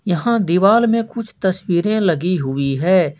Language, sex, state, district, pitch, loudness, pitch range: Hindi, male, Jharkhand, Ranchi, 185 Hz, -17 LUFS, 175-220 Hz